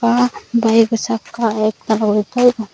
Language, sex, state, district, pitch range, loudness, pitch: Chakma, female, Tripura, Dhalai, 215-235 Hz, -16 LUFS, 225 Hz